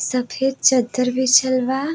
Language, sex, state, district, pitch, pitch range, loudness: Bhojpuri, female, Uttar Pradesh, Varanasi, 260 Hz, 250-265 Hz, -18 LUFS